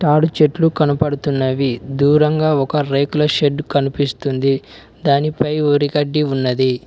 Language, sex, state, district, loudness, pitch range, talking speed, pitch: Telugu, male, Telangana, Mahabubabad, -17 LUFS, 135-150 Hz, 95 wpm, 145 Hz